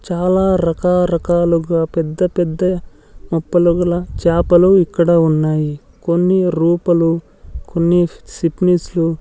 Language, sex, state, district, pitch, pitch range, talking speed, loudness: Telugu, male, Andhra Pradesh, Sri Satya Sai, 170 Hz, 165-180 Hz, 100 wpm, -15 LUFS